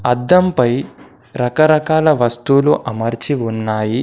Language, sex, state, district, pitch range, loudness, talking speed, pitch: Telugu, male, Telangana, Komaram Bheem, 115-155 Hz, -15 LUFS, 75 wpm, 125 Hz